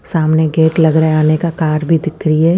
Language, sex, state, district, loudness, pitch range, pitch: Hindi, female, Punjab, Fazilka, -13 LUFS, 155-165 Hz, 160 Hz